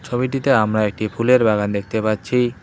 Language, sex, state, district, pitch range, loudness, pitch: Bengali, male, West Bengal, Cooch Behar, 105-125 Hz, -18 LUFS, 110 Hz